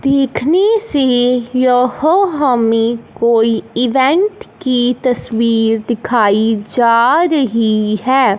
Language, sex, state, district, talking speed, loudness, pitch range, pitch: Hindi, female, Punjab, Fazilka, 85 wpm, -13 LUFS, 230-275 Hz, 250 Hz